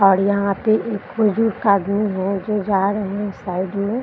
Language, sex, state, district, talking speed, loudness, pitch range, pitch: Hindi, female, Bihar, Bhagalpur, 195 wpm, -20 LUFS, 195-210 Hz, 200 Hz